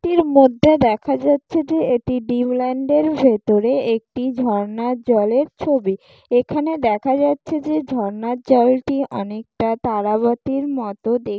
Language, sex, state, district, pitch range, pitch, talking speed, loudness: Bengali, female, West Bengal, Jalpaiguri, 225-280 Hz, 250 Hz, 125 wpm, -18 LUFS